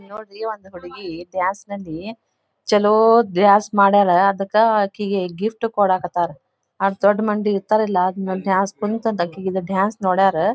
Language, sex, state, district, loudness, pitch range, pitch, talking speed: Kannada, female, Karnataka, Dharwad, -18 LUFS, 190-210 Hz, 200 Hz, 120 wpm